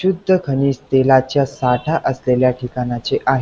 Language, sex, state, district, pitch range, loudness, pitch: Marathi, male, Maharashtra, Pune, 125-140 Hz, -17 LUFS, 130 Hz